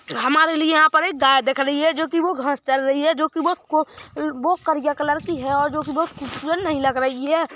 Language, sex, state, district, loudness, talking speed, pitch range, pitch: Hindi, male, Chhattisgarh, Bilaspur, -20 LUFS, 245 wpm, 280-320 Hz, 310 Hz